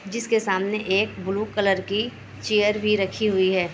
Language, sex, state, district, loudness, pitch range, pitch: Hindi, female, Bihar, Kishanganj, -23 LUFS, 190-215 Hz, 205 Hz